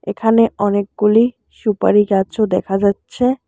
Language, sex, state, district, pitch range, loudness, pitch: Bengali, male, West Bengal, Alipurduar, 200-225 Hz, -16 LUFS, 210 Hz